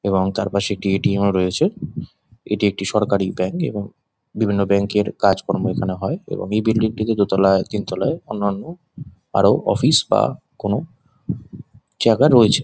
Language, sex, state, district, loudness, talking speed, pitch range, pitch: Bengali, male, West Bengal, Jhargram, -19 LUFS, 150 wpm, 95-105 Hz, 100 Hz